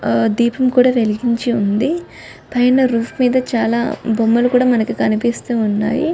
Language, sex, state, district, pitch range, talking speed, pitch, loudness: Telugu, female, Telangana, Karimnagar, 225-250 Hz, 105 wpm, 235 Hz, -16 LUFS